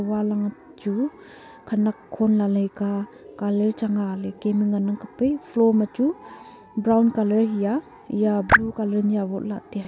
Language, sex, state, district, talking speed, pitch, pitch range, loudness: Wancho, female, Arunachal Pradesh, Longding, 150 wpm, 210 Hz, 205-225 Hz, -23 LUFS